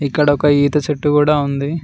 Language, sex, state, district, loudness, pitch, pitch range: Telugu, male, Telangana, Mahabubabad, -15 LUFS, 145 Hz, 145-150 Hz